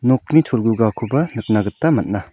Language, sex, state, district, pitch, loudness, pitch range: Garo, male, Meghalaya, South Garo Hills, 115 Hz, -18 LUFS, 110-145 Hz